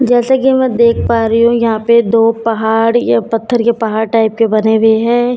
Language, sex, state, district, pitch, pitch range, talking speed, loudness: Hindi, female, Bihar, Katihar, 230 Hz, 225-235 Hz, 245 wpm, -12 LUFS